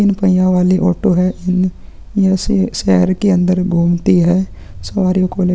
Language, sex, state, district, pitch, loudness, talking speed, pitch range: Hindi, male, Chhattisgarh, Kabirdham, 185 Hz, -14 LUFS, 160 wpm, 180-190 Hz